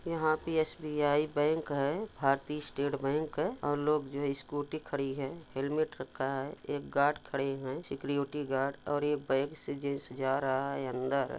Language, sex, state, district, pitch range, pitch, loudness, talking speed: Hindi, male, Jharkhand, Sahebganj, 135-150 Hz, 145 Hz, -33 LUFS, 170 wpm